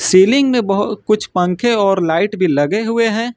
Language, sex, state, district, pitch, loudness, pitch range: Hindi, male, Uttar Pradesh, Lucknow, 210 Hz, -15 LUFS, 185-230 Hz